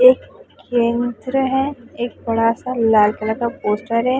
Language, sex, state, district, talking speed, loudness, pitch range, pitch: Hindi, female, Chhattisgarh, Balrampur, 155 wpm, -19 LUFS, 225-255 Hz, 240 Hz